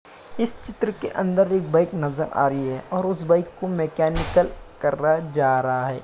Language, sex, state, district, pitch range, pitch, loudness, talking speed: Hindi, male, Uttar Pradesh, Muzaffarnagar, 145-185 Hz, 165 Hz, -23 LUFS, 200 wpm